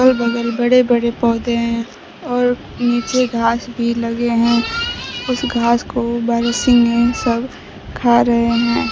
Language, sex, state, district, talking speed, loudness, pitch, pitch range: Hindi, female, Bihar, Kaimur, 135 wpm, -16 LUFS, 235 Hz, 235-245 Hz